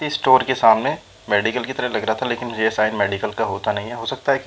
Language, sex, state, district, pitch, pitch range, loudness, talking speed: Hindi, male, Uttar Pradesh, Jyotiba Phule Nagar, 120 Hz, 110-130 Hz, -20 LUFS, 295 wpm